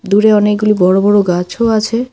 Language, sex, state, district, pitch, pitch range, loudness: Bengali, female, West Bengal, Alipurduar, 210 Hz, 195-215 Hz, -12 LUFS